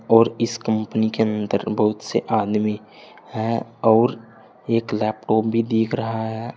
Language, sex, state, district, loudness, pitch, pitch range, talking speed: Hindi, male, Uttar Pradesh, Saharanpur, -21 LUFS, 110 Hz, 110-115 Hz, 145 wpm